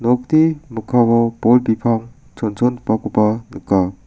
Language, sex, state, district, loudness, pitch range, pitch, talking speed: Garo, male, Meghalaya, South Garo Hills, -17 LUFS, 110-125 Hz, 115 Hz, 90 wpm